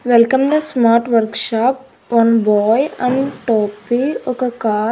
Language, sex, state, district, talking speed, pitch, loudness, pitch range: Telugu, female, Andhra Pradesh, Annamaya, 145 wpm, 235 Hz, -15 LUFS, 225-255 Hz